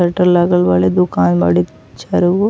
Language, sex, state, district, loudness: Bhojpuri, female, Uttar Pradesh, Ghazipur, -13 LUFS